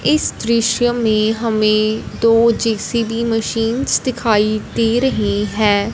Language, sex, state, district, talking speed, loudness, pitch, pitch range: Hindi, female, Punjab, Fazilka, 110 wpm, -16 LUFS, 225 Hz, 215-235 Hz